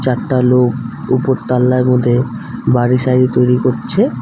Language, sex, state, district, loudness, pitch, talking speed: Bengali, male, West Bengal, Alipurduar, -14 LUFS, 125 Hz, 130 wpm